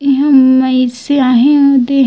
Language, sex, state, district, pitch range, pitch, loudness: Chhattisgarhi, female, Chhattisgarh, Raigarh, 255-280 Hz, 265 Hz, -10 LUFS